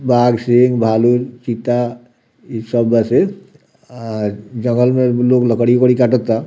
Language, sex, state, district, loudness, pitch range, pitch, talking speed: Bhojpuri, male, Bihar, Muzaffarpur, -15 LUFS, 115-125 Hz, 120 Hz, 140 wpm